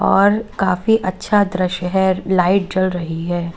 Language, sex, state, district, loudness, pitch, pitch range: Hindi, female, Uttar Pradesh, Lalitpur, -17 LUFS, 185 Hz, 180-195 Hz